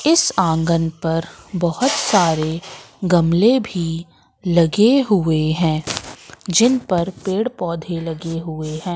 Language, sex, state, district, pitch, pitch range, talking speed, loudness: Hindi, female, Madhya Pradesh, Katni, 175 Hz, 165-205 Hz, 115 wpm, -18 LUFS